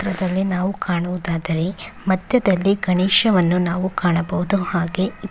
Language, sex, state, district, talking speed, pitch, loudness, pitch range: Kannada, female, Karnataka, Bellary, 100 wpm, 185 Hz, -20 LUFS, 175-195 Hz